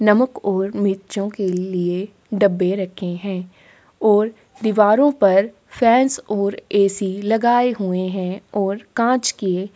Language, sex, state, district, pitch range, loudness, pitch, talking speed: Hindi, female, Chhattisgarh, Korba, 190-215 Hz, -19 LUFS, 200 Hz, 130 wpm